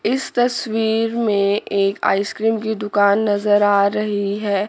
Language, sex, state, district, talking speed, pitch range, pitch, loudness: Hindi, female, Chandigarh, Chandigarh, 155 wpm, 200-220 Hz, 210 Hz, -18 LUFS